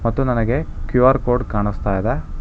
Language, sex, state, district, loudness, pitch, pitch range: Kannada, male, Karnataka, Bangalore, -19 LUFS, 115 Hz, 95-125 Hz